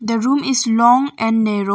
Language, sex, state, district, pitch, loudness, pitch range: English, female, Arunachal Pradesh, Longding, 230 Hz, -15 LUFS, 225-260 Hz